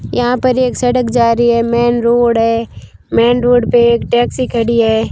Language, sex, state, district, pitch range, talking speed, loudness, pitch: Hindi, female, Rajasthan, Barmer, 230-245 Hz, 200 wpm, -12 LUFS, 235 Hz